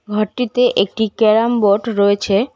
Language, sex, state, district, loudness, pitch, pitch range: Bengali, female, West Bengal, Cooch Behar, -15 LUFS, 220 Hz, 200-235 Hz